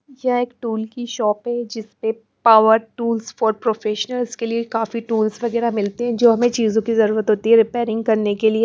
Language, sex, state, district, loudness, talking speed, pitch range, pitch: Hindi, female, Punjab, Pathankot, -19 LUFS, 210 wpm, 220-235 Hz, 225 Hz